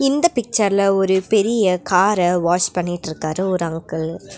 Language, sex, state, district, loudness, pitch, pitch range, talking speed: Tamil, female, Tamil Nadu, Nilgiris, -18 LUFS, 185 Hz, 175-205 Hz, 135 wpm